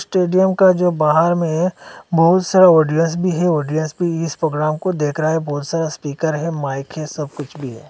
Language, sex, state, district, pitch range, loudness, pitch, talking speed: Hindi, male, Assam, Hailakandi, 150-175 Hz, -17 LUFS, 160 Hz, 215 wpm